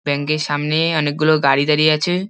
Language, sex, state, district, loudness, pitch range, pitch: Bengali, male, West Bengal, Dakshin Dinajpur, -16 LUFS, 145-155 Hz, 150 Hz